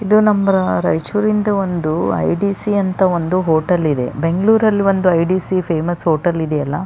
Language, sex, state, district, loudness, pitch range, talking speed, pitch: Kannada, female, Karnataka, Raichur, -16 LUFS, 165-200 Hz, 185 wpm, 180 Hz